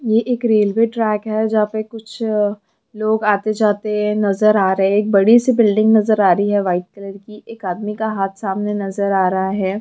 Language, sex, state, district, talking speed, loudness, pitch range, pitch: Hindi, female, Bihar, Jamui, 200 wpm, -17 LUFS, 200-220 Hz, 210 Hz